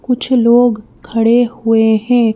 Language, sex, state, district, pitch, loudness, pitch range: Hindi, female, Madhya Pradesh, Bhopal, 235 Hz, -12 LUFS, 225-245 Hz